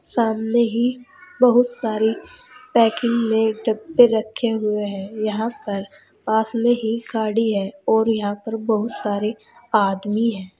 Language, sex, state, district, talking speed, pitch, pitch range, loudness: Hindi, female, Uttar Pradesh, Saharanpur, 135 wpm, 220 Hz, 215-235 Hz, -20 LUFS